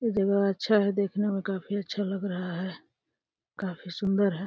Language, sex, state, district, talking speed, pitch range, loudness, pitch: Hindi, female, Uttar Pradesh, Deoria, 190 wpm, 190-200 Hz, -29 LUFS, 195 Hz